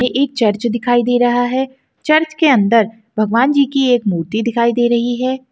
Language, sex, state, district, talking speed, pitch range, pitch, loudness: Hindi, female, Uttarakhand, Tehri Garhwal, 205 wpm, 230-265 Hz, 245 Hz, -15 LUFS